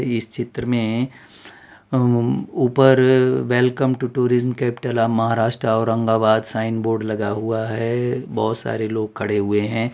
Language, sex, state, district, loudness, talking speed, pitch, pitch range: Hindi, male, Gujarat, Valsad, -20 LUFS, 140 wpm, 115 Hz, 110-125 Hz